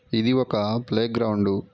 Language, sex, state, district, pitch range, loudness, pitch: Telugu, male, Andhra Pradesh, Chittoor, 105-120 Hz, -23 LUFS, 115 Hz